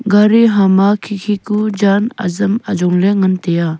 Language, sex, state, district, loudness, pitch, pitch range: Wancho, female, Arunachal Pradesh, Longding, -13 LUFS, 200 Hz, 190-210 Hz